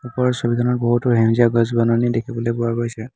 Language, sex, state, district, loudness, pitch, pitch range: Assamese, male, Assam, Hailakandi, -18 LUFS, 120 Hz, 115-120 Hz